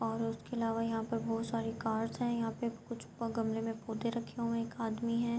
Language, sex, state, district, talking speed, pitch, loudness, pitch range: Urdu, female, Andhra Pradesh, Anantapur, 210 wpm, 230 Hz, -37 LUFS, 225-235 Hz